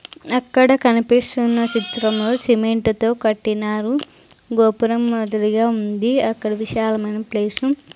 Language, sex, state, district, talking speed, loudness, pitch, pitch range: Telugu, female, Andhra Pradesh, Sri Satya Sai, 100 wpm, -19 LUFS, 230 Hz, 220-245 Hz